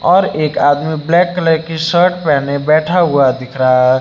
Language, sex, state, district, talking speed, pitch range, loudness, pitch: Hindi, male, Uttar Pradesh, Lucknow, 195 wpm, 140-170 Hz, -13 LUFS, 155 Hz